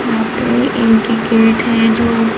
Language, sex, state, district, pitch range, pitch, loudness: Hindi, female, Bihar, Sitamarhi, 225-230 Hz, 225 Hz, -13 LUFS